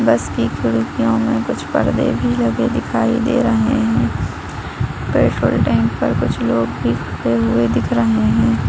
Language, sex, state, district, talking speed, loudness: Hindi, female, Uttar Pradesh, Deoria, 150 wpm, -17 LUFS